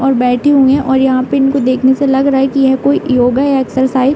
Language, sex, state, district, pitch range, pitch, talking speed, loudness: Hindi, female, Uttar Pradesh, Hamirpur, 260-275 Hz, 265 Hz, 290 wpm, -11 LUFS